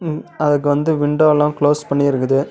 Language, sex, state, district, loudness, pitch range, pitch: Tamil, male, Tamil Nadu, Namakkal, -16 LUFS, 145-150 Hz, 145 Hz